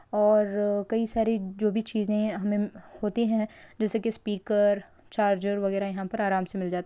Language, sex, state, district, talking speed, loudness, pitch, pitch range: Hindi, female, Rajasthan, Churu, 185 wpm, -27 LUFS, 210 Hz, 200-215 Hz